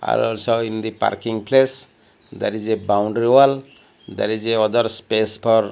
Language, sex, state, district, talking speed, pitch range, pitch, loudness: English, male, Odisha, Malkangiri, 180 wpm, 110-120 Hz, 115 Hz, -19 LUFS